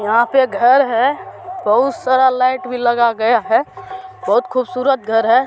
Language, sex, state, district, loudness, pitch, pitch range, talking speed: Hindi, male, Bihar, Supaul, -15 LUFS, 255 Hz, 240-275 Hz, 155 wpm